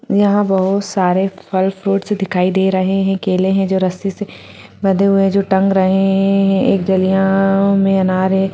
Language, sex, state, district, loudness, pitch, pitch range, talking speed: Hindi, female, Chhattisgarh, Sarguja, -15 LUFS, 195 Hz, 190-195 Hz, 190 wpm